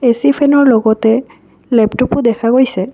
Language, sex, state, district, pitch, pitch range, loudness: Assamese, female, Assam, Kamrup Metropolitan, 240 Hz, 225-265 Hz, -12 LUFS